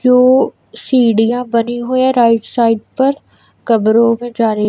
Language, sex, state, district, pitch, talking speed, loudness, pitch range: Hindi, female, Punjab, Kapurthala, 240 Hz, 155 wpm, -13 LUFS, 230-255 Hz